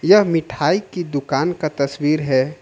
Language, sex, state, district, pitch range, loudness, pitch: Hindi, male, Jharkhand, Ranchi, 140-175 Hz, -19 LUFS, 155 Hz